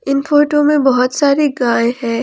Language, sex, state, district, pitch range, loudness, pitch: Hindi, female, Jharkhand, Ranchi, 245-290 Hz, -13 LUFS, 275 Hz